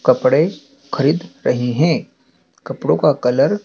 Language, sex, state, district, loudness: Hindi, male, Madhya Pradesh, Dhar, -17 LUFS